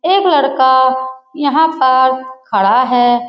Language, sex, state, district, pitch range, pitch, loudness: Hindi, female, Bihar, Lakhisarai, 255-280 Hz, 260 Hz, -12 LUFS